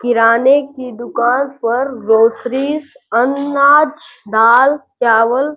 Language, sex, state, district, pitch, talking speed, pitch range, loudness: Hindi, male, Uttar Pradesh, Gorakhpur, 255 Hz, 95 wpm, 235-280 Hz, -13 LUFS